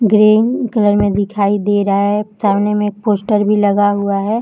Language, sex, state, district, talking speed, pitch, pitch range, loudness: Hindi, female, Bihar, Jahanabad, 205 wpm, 205 Hz, 200-210 Hz, -14 LUFS